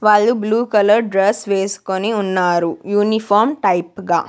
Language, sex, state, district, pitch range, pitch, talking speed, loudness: Telugu, female, Andhra Pradesh, Sri Satya Sai, 190-215 Hz, 205 Hz, 125 wpm, -16 LUFS